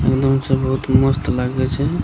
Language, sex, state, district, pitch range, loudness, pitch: Maithili, male, Bihar, Begusarai, 130-135 Hz, -18 LUFS, 130 Hz